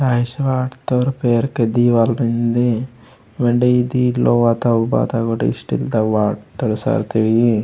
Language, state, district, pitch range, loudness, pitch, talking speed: Gondi, Chhattisgarh, Sukma, 115-125 Hz, -17 LUFS, 120 Hz, 110 wpm